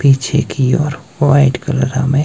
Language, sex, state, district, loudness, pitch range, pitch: Hindi, male, Himachal Pradesh, Shimla, -14 LUFS, 130-145 Hz, 140 Hz